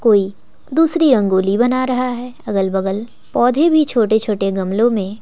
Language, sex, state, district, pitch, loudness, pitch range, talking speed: Hindi, female, Bihar, West Champaran, 225 Hz, -16 LUFS, 195-255 Hz, 160 wpm